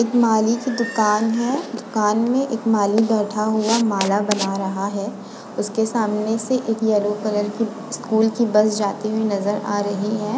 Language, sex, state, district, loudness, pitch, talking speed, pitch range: Hindi, female, Uttar Pradesh, Muzaffarnagar, -20 LUFS, 215 Hz, 180 wpm, 205-225 Hz